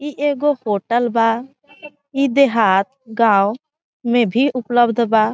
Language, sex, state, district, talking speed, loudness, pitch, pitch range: Bhojpuri, female, Bihar, Saran, 125 wpm, -17 LUFS, 245 Hz, 225-285 Hz